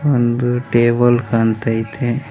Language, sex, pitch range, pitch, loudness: Kannada, male, 115-120 Hz, 120 Hz, -16 LUFS